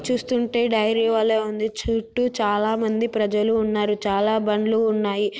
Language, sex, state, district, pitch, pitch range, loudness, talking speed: Telugu, female, Telangana, Nalgonda, 220 Hz, 210-225 Hz, -22 LUFS, 135 wpm